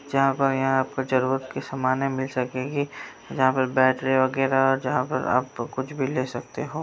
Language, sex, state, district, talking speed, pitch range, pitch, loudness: Hindi, male, Bihar, Saharsa, 150 wpm, 130-135 Hz, 130 Hz, -24 LUFS